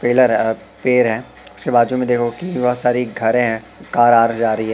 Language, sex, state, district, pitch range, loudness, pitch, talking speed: Hindi, male, Madhya Pradesh, Katni, 115-125 Hz, -17 LUFS, 120 Hz, 240 wpm